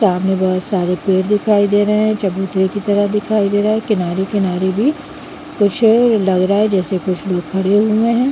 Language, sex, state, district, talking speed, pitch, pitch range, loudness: Hindi, female, Chhattisgarh, Bilaspur, 195 wpm, 205 Hz, 190-215 Hz, -15 LUFS